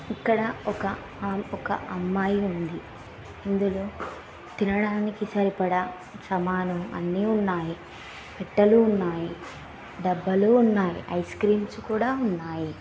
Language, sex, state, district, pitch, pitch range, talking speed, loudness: Telugu, female, Andhra Pradesh, Srikakulam, 195 Hz, 180-210 Hz, 90 wpm, -26 LUFS